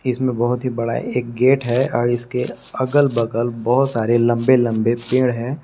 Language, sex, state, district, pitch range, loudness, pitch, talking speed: Hindi, male, Jharkhand, Palamu, 120-130 Hz, -18 LUFS, 120 Hz, 180 wpm